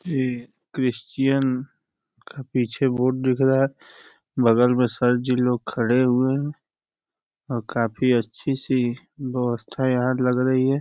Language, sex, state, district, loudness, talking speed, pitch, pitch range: Hindi, male, Uttar Pradesh, Deoria, -22 LUFS, 140 wpm, 130 Hz, 125-135 Hz